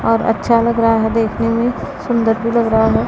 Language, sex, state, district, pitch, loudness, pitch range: Hindi, female, Punjab, Pathankot, 230 Hz, -15 LUFS, 225-235 Hz